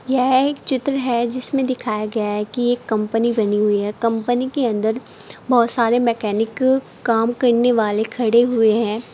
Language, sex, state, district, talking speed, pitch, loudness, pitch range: Hindi, female, Uttar Pradesh, Saharanpur, 175 wpm, 235 Hz, -18 LUFS, 220-255 Hz